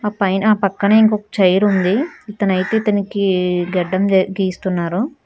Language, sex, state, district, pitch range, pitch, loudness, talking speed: Telugu, female, Telangana, Hyderabad, 185-210 Hz, 195 Hz, -16 LUFS, 100 wpm